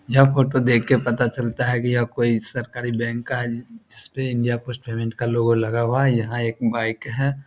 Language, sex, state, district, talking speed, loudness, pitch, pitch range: Hindi, male, Bihar, Samastipur, 210 wpm, -22 LUFS, 120 Hz, 115-130 Hz